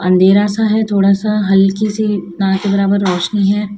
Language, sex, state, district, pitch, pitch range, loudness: Hindi, female, Madhya Pradesh, Dhar, 200 Hz, 195-210 Hz, -13 LUFS